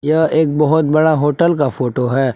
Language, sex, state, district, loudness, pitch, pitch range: Hindi, male, Jharkhand, Palamu, -15 LUFS, 150 Hz, 135-160 Hz